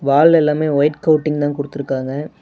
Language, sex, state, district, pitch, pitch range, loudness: Tamil, male, Tamil Nadu, Namakkal, 145 Hz, 140-155 Hz, -16 LUFS